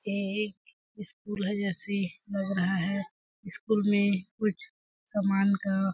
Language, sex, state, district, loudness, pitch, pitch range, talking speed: Hindi, female, Chhattisgarh, Balrampur, -30 LUFS, 200 Hz, 195-210 Hz, 140 wpm